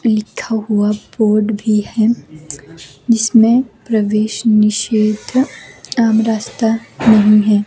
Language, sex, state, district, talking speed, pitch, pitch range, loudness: Hindi, female, Himachal Pradesh, Shimla, 95 wpm, 215 Hz, 210-225 Hz, -14 LUFS